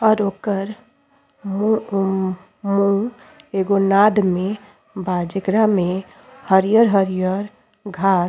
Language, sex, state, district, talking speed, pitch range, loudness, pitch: Bhojpuri, female, Uttar Pradesh, Ghazipur, 95 wpm, 190-215 Hz, -19 LUFS, 200 Hz